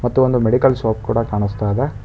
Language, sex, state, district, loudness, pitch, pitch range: Kannada, male, Karnataka, Bangalore, -17 LUFS, 115 Hz, 110-130 Hz